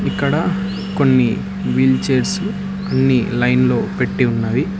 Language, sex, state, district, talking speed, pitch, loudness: Telugu, male, Telangana, Hyderabad, 100 wpm, 135 Hz, -17 LUFS